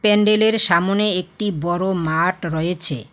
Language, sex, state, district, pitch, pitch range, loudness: Bengali, female, West Bengal, Alipurduar, 180 Hz, 170-210 Hz, -18 LUFS